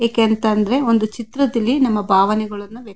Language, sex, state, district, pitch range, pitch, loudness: Kannada, female, Karnataka, Mysore, 210-235 Hz, 225 Hz, -17 LUFS